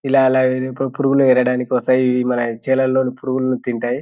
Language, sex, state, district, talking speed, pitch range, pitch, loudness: Telugu, male, Telangana, Nalgonda, 150 wpm, 125-130 Hz, 130 Hz, -17 LUFS